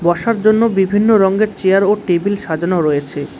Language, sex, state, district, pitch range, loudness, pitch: Bengali, male, West Bengal, Cooch Behar, 175-210 Hz, -14 LUFS, 195 Hz